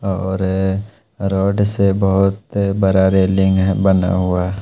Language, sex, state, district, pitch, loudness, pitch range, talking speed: Hindi, male, Punjab, Pathankot, 95 Hz, -16 LUFS, 95-100 Hz, 115 wpm